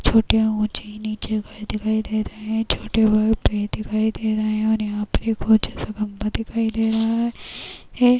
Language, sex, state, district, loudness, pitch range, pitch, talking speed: Hindi, female, Uttar Pradesh, Jyotiba Phule Nagar, -22 LUFS, 215-225 Hz, 220 Hz, 175 wpm